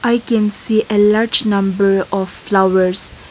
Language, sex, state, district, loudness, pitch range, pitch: English, female, Nagaland, Kohima, -14 LUFS, 195-220 Hz, 205 Hz